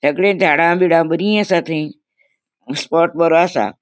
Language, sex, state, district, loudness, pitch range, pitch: Konkani, female, Goa, North and South Goa, -15 LUFS, 165-190 Hz, 170 Hz